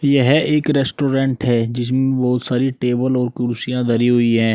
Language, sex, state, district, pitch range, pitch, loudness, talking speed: Hindi, male, Uttar Pradesh, Shamli, 120-135 Hz, 125 Hz, -17 LUFS, 170 wpm